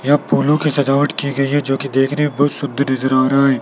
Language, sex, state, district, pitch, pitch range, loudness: Hindi, male, Rajasthan, Jaipur, 140 Hz, 135-145 Hz, -16 LUFS